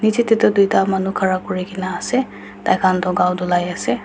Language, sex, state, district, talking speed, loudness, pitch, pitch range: Nagamese, female, Nagaland, Dimapur, 190 wpm, -18 LUFS, 190 Hz, 180-200 Hz